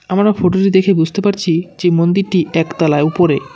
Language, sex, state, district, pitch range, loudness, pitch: Bengali, male, West Bengal, Cooch Behar, 165-195 Hz, -14 LUFS, 180 Hz